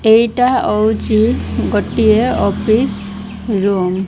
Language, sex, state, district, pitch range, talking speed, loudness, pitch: Odia, female, Odisha, Malkangiri, 205-230 Hz, 90 wpm, -14 LUFS, 215 Hz